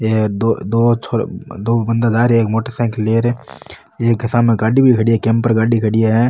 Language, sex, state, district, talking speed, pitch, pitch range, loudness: Marwari, male, Rajasthan, Nagaur, 220 wpm, 115 Hz, 110-115 Hz, -15 LUFS